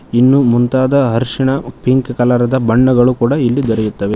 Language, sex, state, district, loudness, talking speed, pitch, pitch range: Kannada, male, Karnataka, Koppal, -13 LUFS, 160 wpm, 125 Hz, 120-130 Hz